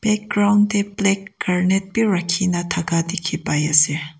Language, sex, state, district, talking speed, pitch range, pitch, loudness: Nagamese, female, Nagaland, Kohima, 155 wpm, 165-205 Hz, 190 Hz, -19 LUFS